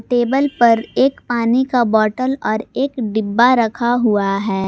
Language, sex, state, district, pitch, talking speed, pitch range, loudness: Hindi, female, Jharkhand, Garhwa, 235 Hz, 155 wpm, 220-255 Hz, -16 LUFS